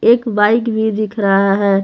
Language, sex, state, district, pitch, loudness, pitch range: Hindi, female, Jharkhand, Palamu, 215 Hz, -14 LUFS, 200-225 Hz